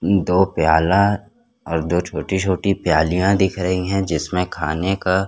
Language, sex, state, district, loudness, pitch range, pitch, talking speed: Hindi, male, Chhattisgarh, Korba, -19 LUFS, 85-95 Hz, 90 Hz, 135 wpm